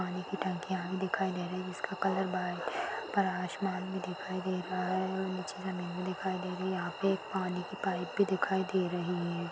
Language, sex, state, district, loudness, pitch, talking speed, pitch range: Hindi, female, Uttar Pradesh, Jalaun, -34 LUFS, 185 Hz, 220 wpm, 180-190 Hz